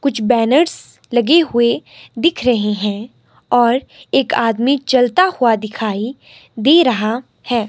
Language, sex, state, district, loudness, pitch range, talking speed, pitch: Hindi, female, Himachal Pradesh, Shimla, -15 LUFS, 225-270 Hz, 125 wpm, 240 Hz